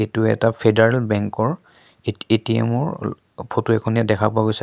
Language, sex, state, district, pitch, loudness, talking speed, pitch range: Assamese, male, Assam, Sonitpur, 110 Hz, -20 LUFS, 205 wpm, 110-115 Hz